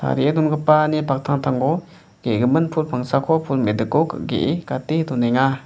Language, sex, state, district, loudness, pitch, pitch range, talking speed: Garo, male, Meghalaya, West Garo Hills, -20 LUFS, 140 Hz, 130-155 Hz, 105 wpm